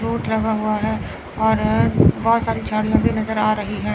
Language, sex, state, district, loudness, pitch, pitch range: Hindi, female, Chandigarh, Chandigarh, -19 LUFS, 215 Hz, 205-220 Hz